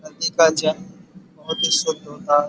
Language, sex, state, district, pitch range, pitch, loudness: Hindi, male, Uttar Pradesh, Budaun, 155-190 Hz, 165 Hz, -20 LUFS